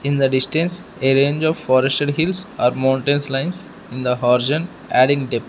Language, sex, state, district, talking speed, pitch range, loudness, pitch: English, male, Arunachal Pradesh, Lower Dibang Valley, 175 wpm, 130-155 Hz, -18 LUFS, 135 Hz